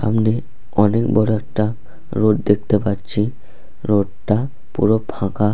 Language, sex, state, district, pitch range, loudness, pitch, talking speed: Bengali, male, West Bengal, Purulia, 105-110 Hz, -19 LUFS, 105 Hz, 120 wpm